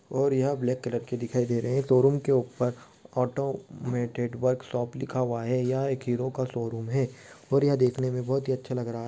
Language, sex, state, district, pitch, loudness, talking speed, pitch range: Hindi, male, Telangana, Nalgonda, 125 Hz, -28 LUFS, 220 wpm, 125-135 Hz